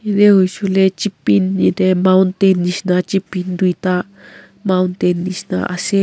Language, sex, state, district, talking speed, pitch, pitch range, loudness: Nagamese, female, Nagaland, Kohima, 100 wpm, 185 Hz, 180-195 Hz, -15 LUFS